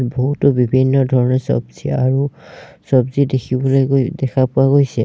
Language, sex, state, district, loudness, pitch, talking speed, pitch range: Assamese, male, Assam, Sonitpur, -16 LUFS, 130 Hz, 130 wpm, 130-140 Hz